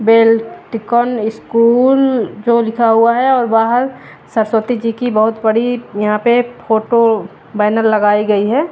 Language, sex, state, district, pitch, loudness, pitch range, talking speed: Hindi, female, Haryana, Jhajjar, 230 Hz, -13 LUFS, 220-240 Hz, 135 wpm